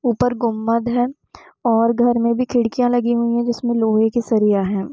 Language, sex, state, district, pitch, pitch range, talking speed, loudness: Hindi, female, Bihar, Purnia, 235 Hz, 230-240 Hz, 195 wpm, -18 LUFS